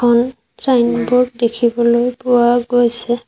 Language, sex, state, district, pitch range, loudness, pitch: Assamese, female, Assam, Sonitpur, 235-245 Hz, -14 LUFS, 240 Hz